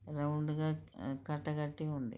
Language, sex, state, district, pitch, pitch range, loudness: Telugu, male, Telangana, Karimnagar, 150 Hz, 145-155 Hz, -38 LUFS